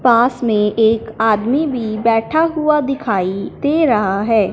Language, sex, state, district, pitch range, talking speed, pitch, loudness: Hindi, male, Punjab, Fazilka, 215-280 Hz, 145 wpm, 230 Hz, -16 LUFS